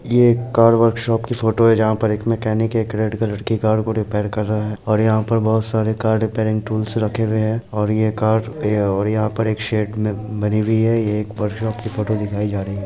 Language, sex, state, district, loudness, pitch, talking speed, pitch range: Hindi, male, Bihar, Darbhanga, -19 LUFS, 110 Hz, 260 wpm, 105-110 Hz